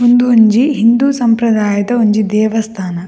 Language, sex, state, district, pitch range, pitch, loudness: Tulu, female, Karnataka, Dakshina Kannada, 215-240 Hz, 225 Hz, -12 LUFS